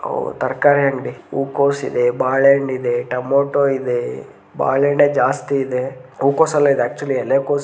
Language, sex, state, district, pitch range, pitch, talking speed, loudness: Kannada, male, Karnataka, Gulbarga, 130-145 Hz, 140 Hz, 135 wpm, -17 LUFS